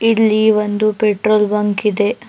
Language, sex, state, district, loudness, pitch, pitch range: Kannada, female, Karnataka, Bangalore, -15 LUFS, 215 Hz, 210-220 Hz